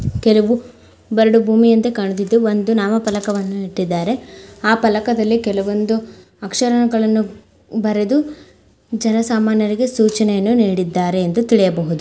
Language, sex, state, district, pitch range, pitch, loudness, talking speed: Kannada, female, Karnataka, Mysore, 205-230 Hz, 220 Hz, -16 LUFS, 85 wpm